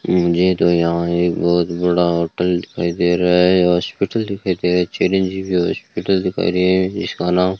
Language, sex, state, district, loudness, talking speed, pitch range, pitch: Hindi, male, Rajasthan, Bikaner, -17 LUFS, 180 wpm, 85-95 Hz, 90 Hz